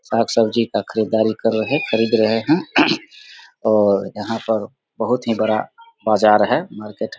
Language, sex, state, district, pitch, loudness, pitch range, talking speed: Hindi, male, Bihar, Samastipur, 110 Hz, -18 LUFS, 105-115 Hz, 150 wpm